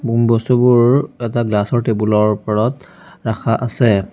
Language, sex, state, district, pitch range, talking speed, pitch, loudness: Assamese, male, Assam, Sonitpur, 110-120 Hz, 130 wpm, 115 Hz, -16 LUFS